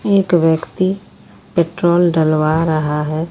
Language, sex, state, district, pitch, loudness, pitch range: Hindi, female, Jharkhand, Ranchi, 165 Hz, -16 LUFS, 155-175 Hz